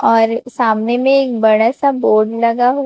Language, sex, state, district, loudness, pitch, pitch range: Hindi, female, Chhattisgarh, Raipur, -14 LUFS, 235 Hz, 225-255 Hz